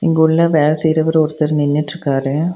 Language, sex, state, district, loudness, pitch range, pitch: Tamil, female, Tamil Nadu, Nilgiris, -15 LUFS, 150-160 Hz, 155 Hz